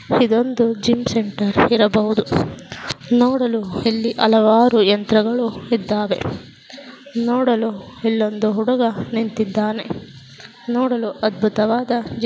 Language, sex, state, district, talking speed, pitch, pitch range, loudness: Kannada, female, Karnataka, Dakshina Kannada, 80 wpm, 225 Hz, 215-240 Hz, -18 LUFS